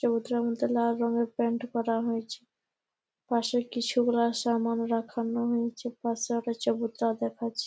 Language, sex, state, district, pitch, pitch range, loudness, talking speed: Bengali, female, West Bengal, Malda, 235 Hz, 230-235 Hz, -29 LUFS, 115 wpm